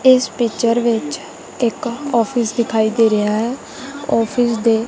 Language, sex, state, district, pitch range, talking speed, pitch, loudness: Punjabi, female, Punjab, Kapurthala, 225-245 Hz, 135 wpm, 235 Hz, -17 LUFS